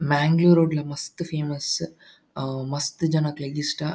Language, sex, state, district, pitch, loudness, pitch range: Tulu, male, Karnataka, Dakshina Kannada, 150 Hz, -24 LUFS, 145-160 Hz